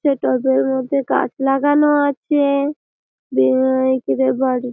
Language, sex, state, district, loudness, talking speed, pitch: Bengali, female, West Bengal, Malda, -17 LUFS, 125 wpm, 265 Hz